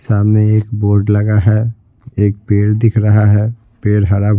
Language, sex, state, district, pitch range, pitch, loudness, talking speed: Hindi, male, Bihar, Patna, 105-110 Hz, 105 Hz, -13 LUFS, 175 wpm